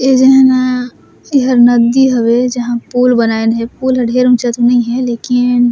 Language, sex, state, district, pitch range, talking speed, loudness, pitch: Surgujia, female, Chhattisgarh, Sarguja, 240-255 Hz, 180 wpm, -11 LUFS, 245 Hz